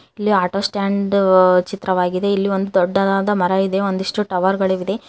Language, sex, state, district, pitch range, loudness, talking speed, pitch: Kannada, female, Karnataka, Koppal, 185-200 Hz, -17 LUFS, 165 wpm, 195 Hz